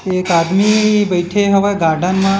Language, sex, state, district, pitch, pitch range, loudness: Hindi, male, Chhattisgarh, Bilaspur, 195 Hz, 180-205 Hz, -14 LUFS